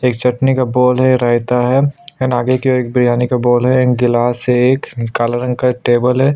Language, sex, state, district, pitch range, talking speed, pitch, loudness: Hindi, male, Chhattisgarh, Sukma, 120-130 Hz, 235 wpm, 125 Hz, -14 LUFS